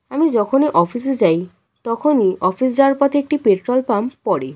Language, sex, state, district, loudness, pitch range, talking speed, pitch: Bengali, female, West Bengal, Kolkata, -17 LUFS, 195-275 Hz, 170 wpm, 250 Hz